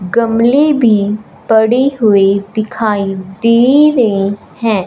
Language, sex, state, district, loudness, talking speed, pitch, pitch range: Hindi, female, Punjab, Fazilka, -12 LUFS, 100 wpm, 220 Hz, 200-235 Hz